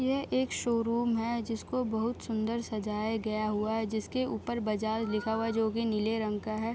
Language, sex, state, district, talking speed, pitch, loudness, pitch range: Hindi, female, Bihar, Saharsa, 215 wpm, 225 Hz, -32 LUFS, 215-235 Hz